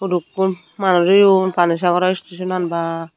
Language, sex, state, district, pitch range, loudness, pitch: Chakma, female, Tripura, Unakoti, 175-190 Hz, -17 LUFS, 180 Hz